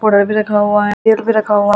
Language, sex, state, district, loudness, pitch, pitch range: Hindi, female, Delhi, New Delhi, -13 LUFS, 210 Hz, 205-215 Hz